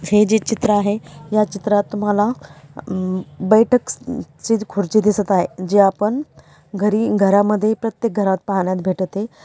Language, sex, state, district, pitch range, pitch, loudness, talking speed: Marathi, female, Maharashtra, Dhule, 190-215 Hz, 205 Hz, -18 LUFS, 135 wpm